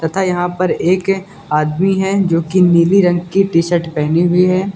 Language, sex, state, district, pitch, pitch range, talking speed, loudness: Hindi, male, Uttar Pradesh, Lucknow, 180 Hz, 170-190 Hz, 200 wpm, -14 LUFS